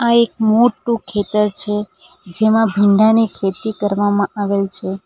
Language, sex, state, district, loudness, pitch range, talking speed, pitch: Gujarati, female, Gujarat, Valsad, -16 LUFS, 200-225 Hz, 130 wpm, 210 Hz